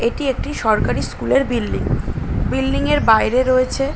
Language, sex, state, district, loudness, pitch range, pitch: Bengali, female, West Bengal, Jhargram, -18 LUFS, 245-270 Hz, 255 Hz